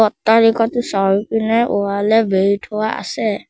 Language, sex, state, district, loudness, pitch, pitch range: Assamese, male, Assam, Sonitpur, -16 LUFS, 220 Hz, 200-225 Hz